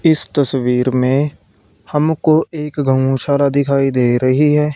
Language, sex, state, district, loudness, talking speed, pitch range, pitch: Hindi, male, Punjab, Fazilka, -15 LUFS, 140 wpm, 130-150 Hz, 140 Hz